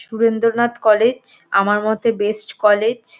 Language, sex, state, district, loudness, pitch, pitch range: Bengali, female, West Bengal, North 24 Parganas, -17 LUFS, 225 Hz, 210-235 Hz